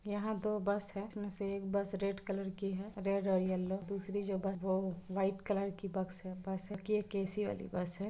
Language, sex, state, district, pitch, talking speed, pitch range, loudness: Hindi, female, Chhattisgarh, Bilaspur, 195 Hz, 220 wpm, 190-200 Hz, -38 LUFS